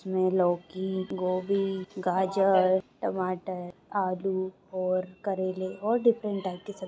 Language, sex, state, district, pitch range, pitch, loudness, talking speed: Bhojpuri, female, Bihar, Saran, 185-195 Hz, 185 Hz, -29 LUFS, 115 wpm